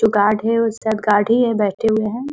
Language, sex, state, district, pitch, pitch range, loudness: Hindi, female, Bihar, Gopalganj, 220 Hz, 210-230 Hz, -17 LUFS